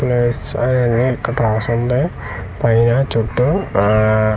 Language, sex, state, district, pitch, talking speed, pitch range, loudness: Telugu, male, Andhra Pradesh, Manyam, 120 Hz, 135 wpm, 110-125 Hz, -16 LUFS